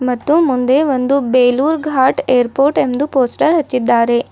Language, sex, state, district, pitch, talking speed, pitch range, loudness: Kannada, female, Karnataka, Bidar, 260 Hz, 125 wpm, 250-290 Hz, -14 LUFS